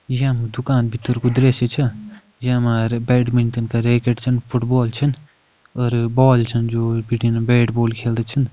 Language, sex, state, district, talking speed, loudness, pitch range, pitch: Kumaoni, male, Uttarakhand, Uttarkashi, 160 wpm, -18 LUFS, 115-125 Hz, 120 Hz